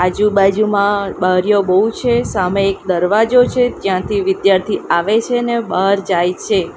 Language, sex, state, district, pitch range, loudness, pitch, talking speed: Gujarati, female, Gujarat, Valsad, 185-215 Hz, -15 LUFS, 200 Hz, 140 wpm